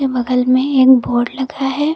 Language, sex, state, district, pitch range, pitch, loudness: Hindi, female, Uttar Pradesh, Lucknow, 250-270 Hz, 260 Hz, -14 LUFS